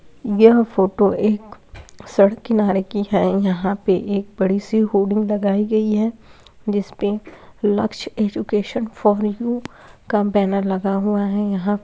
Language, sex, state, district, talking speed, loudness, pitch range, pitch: Hindi, female, Bihar, Saharsa, 140 wpm, -19 LUFS, 195-215 Hz, 205 Hz